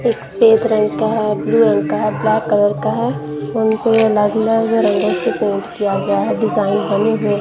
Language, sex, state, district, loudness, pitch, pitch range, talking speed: Hindi, female, Punjab, Kapurthala, -16 LUFS, 215 Hz, 200-225 Hz, 170 wpm